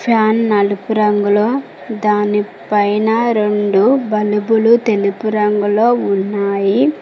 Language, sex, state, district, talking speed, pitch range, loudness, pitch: Telugu, female, Telangana, Mahabubabad, 85 wpm, 205-225 Hz, -14 LUFS, 210 Hz